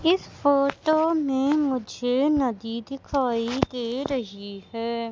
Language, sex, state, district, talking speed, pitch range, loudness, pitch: Hindi, female, Madhya Pradesh, Katni, 105 wpm, 230-285 Hz, -25 LUFS, 260 Hz